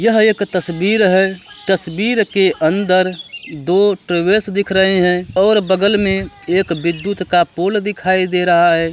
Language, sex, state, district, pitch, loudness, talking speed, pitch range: Hindi, male, Uttar Pradesh, Varanasi, 190 Hz, -15 LUFS, 140 wpm, 180-200 Hz